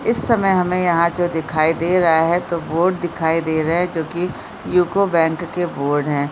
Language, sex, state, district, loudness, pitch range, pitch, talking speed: Hindi, female, Bihar, Supaul, -18 LUFS, 160-180 Hz, 170 Hz, 210 wpm